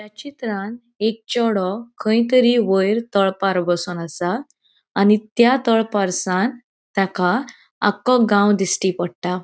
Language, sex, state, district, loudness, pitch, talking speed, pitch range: Konkani, female, Goa, North and South Goa, -19 LUFS, 205 Hz, 115 wpm, 190-235 Hz